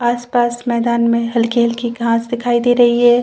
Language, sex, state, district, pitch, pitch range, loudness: Hindi, female, Chhattisgarh, Bastar, 240 Hz, 235-240 Hz, -15 LUFS